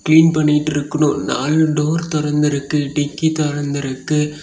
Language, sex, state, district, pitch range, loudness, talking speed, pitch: Tamil, male, Tamil Nadu, Kanyakumari, 145-155 Hz, -17 LUFS, 135 wpm, 150 Hz